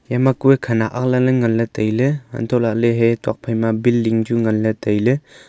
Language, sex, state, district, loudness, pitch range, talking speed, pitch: Wancho, male, Arunachal Pradesh, Longding, -18 LUFS, 115-125 Hz, 155 wpm, 115 Hz